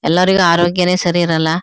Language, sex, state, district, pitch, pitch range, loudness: Kannada, female, Karnataka, Shimoga, 175 Hz, 170-180 Hz, -13 LUFS